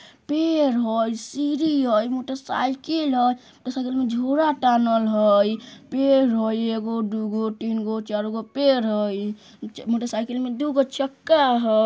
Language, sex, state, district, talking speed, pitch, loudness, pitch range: Bajjika, female, Bihar, Vaishali, 135 wpm, 240 Hz, -22 LUFS, 220-270 Hz